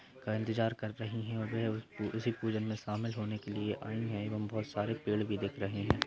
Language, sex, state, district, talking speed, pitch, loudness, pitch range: Hindi, male, Bihar, Purnia, 235 wpm, 110 Hz, -37 LUFS, 105-115 Hz